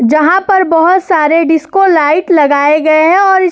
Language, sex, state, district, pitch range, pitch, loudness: Hindi, female, Uttar Pradesh, Etah, 305-375 Hz, 330 Hz, -9 LUFS